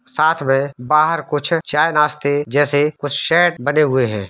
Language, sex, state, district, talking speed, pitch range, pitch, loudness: Hindi, male, Jharkhand, Sahebganj, 165 wpm, 140-155 Hz, 145 Hz, -16 LUFS